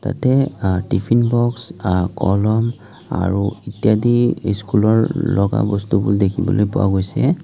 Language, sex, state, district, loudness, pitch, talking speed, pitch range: Assamese, male, Assam, Kamrup Metropolitan, -18 LUFS, 105 Hz, 115 wpm, 100-120 Hz